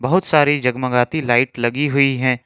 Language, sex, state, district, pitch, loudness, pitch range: Hindi, male, Jharkhand, Ranchi, 130 Hz, -17 LUFS, 125-145 Hz